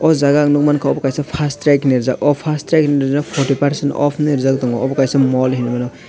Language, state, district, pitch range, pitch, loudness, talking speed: Kokborok, Tripura, West Tripura, 135-145 Hz, 140 Hz, -15 LUFS, 245 wpm